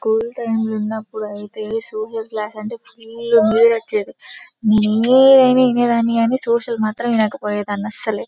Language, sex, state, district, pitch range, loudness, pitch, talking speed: Telugu, female, Telangana, Karimnagar, 215-235 Hz, -17 LUFS, 225 Hz, 110 wpm